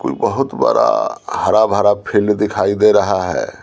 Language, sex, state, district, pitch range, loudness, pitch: Hindi, male, Bihar, Patna, 100-105 Hz, -15 LUFS, 105 Hz